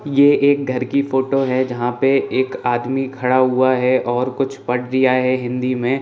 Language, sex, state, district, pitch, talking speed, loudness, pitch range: Hindi, male, Bihar, Saran, 130 Hz, 200 wpm, -18 LUFS, 125-135 Hz